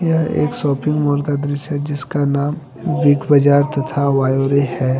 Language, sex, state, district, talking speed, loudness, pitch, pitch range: Hindi, male, Jharkhand, Deoghar, 170 wpm, -17 LUFS, 145 Hz, 140-145 Hz